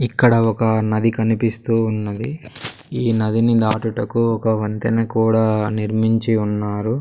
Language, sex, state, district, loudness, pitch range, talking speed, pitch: Telugu, male, Andhra Pradesh, Sri Satya Sai, -19 LUFS, 110-115 Hz, 110 wpm, 110 Hz